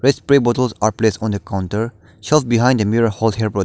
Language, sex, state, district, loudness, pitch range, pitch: English, male, Nagaland, Dimapur, -17 LUFS, 105-120 Hz, 110 Hz